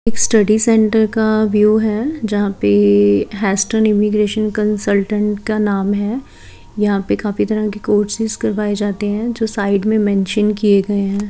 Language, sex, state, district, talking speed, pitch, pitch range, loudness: Hindi, female, Haryana, Charkhi Dadri, 160 wpm, 210 Hz, 205-215 Hz, -16 LUFS